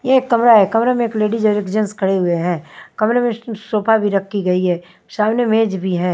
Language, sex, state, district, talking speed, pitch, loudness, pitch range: Hindi, female, Himachal Pradesh, Shimla, 245 wpm, 215 Hz, -16 LUFS, 190-225 Hz